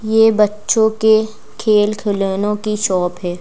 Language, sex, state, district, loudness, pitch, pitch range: Hindi, female, Madhya Pradesh, Bhopal, -16 LUFS, 210 Hz, 200-220 Hz